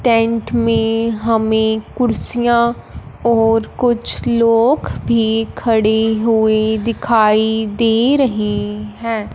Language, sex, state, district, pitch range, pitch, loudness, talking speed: Hindi, male, Punjab, Fazilka, 220-230 Hz, 225 Hz, -15 LUFS, 90 wpm